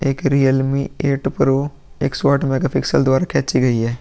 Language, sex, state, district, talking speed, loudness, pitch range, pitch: Hindi, male, Bihar, Vaishali, 180 wpm, -18 LUFS, 135-140 Hz, 135 Hz